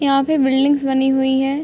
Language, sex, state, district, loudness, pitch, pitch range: Hindi, female, Uttar Pradesh, Ghazipur, -16 LUFS, 270 Hz, 265-285 Hz